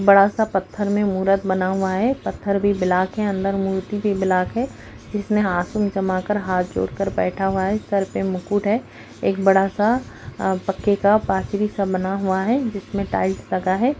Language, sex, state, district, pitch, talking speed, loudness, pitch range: Hindi, female, Uttar Pradesh, Hamirpur, 195 Hz, 195 wpm, -21 LUFS, 190-205 Hz